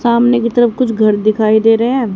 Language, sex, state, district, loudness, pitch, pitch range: Hindi, female, Haryana, Charkhi Dadri, -12 LUFS, 230 Hz, 215-240 Hz